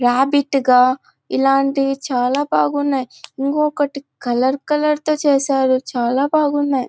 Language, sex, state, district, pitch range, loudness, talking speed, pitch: Telugu, female, Andhra Pradesh, Anantapur, 255-285 Hz, -17 LUFS, 95 wpm, 275 Hz